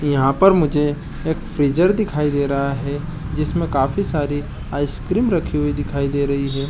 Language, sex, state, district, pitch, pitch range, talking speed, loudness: Chhattisgarhi, male, Chhattisgarh, Jashpur, 145 Hz, 140-160 Hz, 170 wpm, -20 LUFS